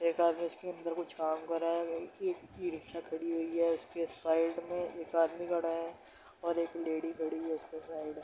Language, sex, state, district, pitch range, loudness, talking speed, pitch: Hindi, male, Bihar, Darbhanga, 160-170 Hz, -36 LUFS, 225 wpm, 165 Hz